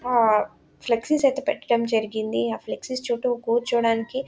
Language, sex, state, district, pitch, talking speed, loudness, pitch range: Telugu, female, Telangana, Nalgonda, 235 Hz, 125 wpm, -23 LUFS, 225-255 Hz